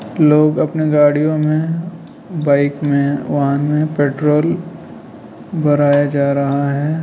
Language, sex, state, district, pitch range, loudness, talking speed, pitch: Hindi, male, Rajasthan, Jaipur, 140-155 Hz, -15 LUFS, 110 wpm, 150 Hz